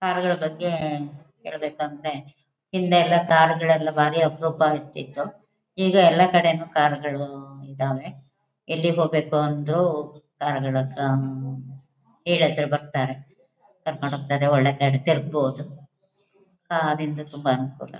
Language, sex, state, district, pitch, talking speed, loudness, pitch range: Kannada, female, Karnataka, Shimoga, 150 Hz, 120 wpm, -23 LUFS, 140-165 Hz